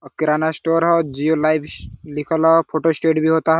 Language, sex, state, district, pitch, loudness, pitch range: Hindi, male, Jharkhand, Sahebganj, 160 Hz, -17 LUFS, 150-160 Hz